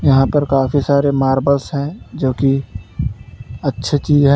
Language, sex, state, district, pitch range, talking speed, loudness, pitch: Hindi, male, Uttar Pradesh, Lalitpur, 130-140 Hz, 150 wpm, -17 LUFS, 135 Hz